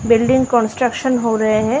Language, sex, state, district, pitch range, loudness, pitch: Hindi, female, Maharashtra, Chandrapur, 225-255 Hz, -16 LUFS, 235 Hz